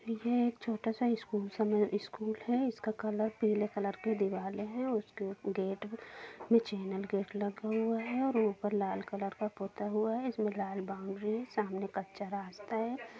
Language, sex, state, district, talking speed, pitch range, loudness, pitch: Hindi, female, Jharkhand, Jamtara, 175 wpm, 200-225 Hz, -35 LUFS, 215 Hz